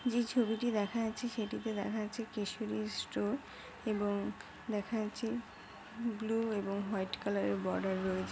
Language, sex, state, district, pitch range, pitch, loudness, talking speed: Bengali, female, West Bengal, Jhargram, 195-225 Hz, 215 Hz, -37 LUFS, 130 wpm